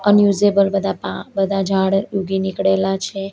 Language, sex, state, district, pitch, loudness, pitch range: Gujarati, female, Gujarat, Valsad, 195 Hz, -18 LUFS, 195-200 Hz